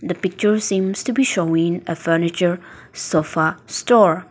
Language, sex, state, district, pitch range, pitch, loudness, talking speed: English, female, Nagaland, Dimapur, 165-200 Hz, 175 Hz, -19 LUFS, 140 wpm